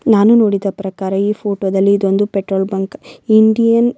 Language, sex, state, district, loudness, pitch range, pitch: Kannada, female, Karnataka, Bellary, -14 LUFS, 195-220 Hz, 200 Hz